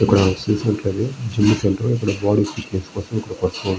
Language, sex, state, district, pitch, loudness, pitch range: Telugu, male, Andhra Pradesh, Srikakulam, 105 Hz, -20 LUFS, 100-110 Hz